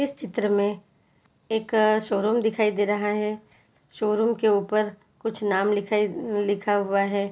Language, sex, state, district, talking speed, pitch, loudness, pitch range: Hindi, female, Bihar, Jahanabad, 150 wpm, 210 Hz, -24 LUFS, 205-220 Hz